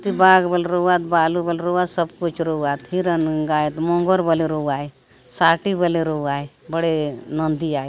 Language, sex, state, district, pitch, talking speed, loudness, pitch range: Halbi, female, Chhattisgarh, Bastar, 165 Hz, 150 wpm, -20 LUFS, 150-175 Hz